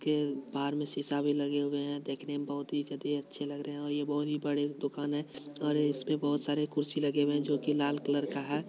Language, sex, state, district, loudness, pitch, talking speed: Hindi, male, Bihar, Supaul, -33 LUFS, 145 Hz, 260 wpm